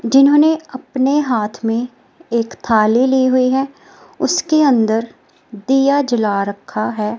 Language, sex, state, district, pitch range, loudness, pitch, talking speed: Hindi, female, Himachal Pradesh, Shimla, 225-275 Hz, -16 LUFS, 255 Hz, 125 wpm